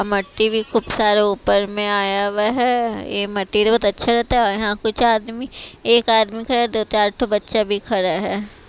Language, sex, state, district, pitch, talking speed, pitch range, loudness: Hindi, female, Himachal Pradesh, Shimla, 215 Hz, 200 wpm, 205-230 Hz, -16 LUFS